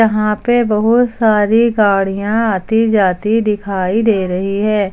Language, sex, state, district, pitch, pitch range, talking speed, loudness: Hindi, female, Jharkhand, Ranchi, 215 Hz, 200-225 Hz, 135 wpm, -14 LUFS